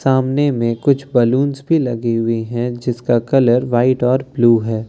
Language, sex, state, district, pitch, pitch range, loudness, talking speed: Hindi, male, Bihar, Katihar, 125 Hz, 120-135 Hz, -16 LUFS, 170 wpm